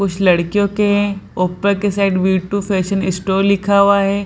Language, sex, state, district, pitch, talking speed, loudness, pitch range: Hindi, female, Bihar, Samastipur, 200 Hz, 210 wpm, -16 LUFS, 190-200 Hz